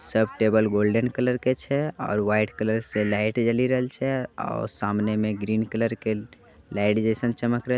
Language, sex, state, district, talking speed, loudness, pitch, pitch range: Angika, male, Bihar, Begusarai, 185 wpm, -25 LUFS, 110 Hz, 105-125 Hz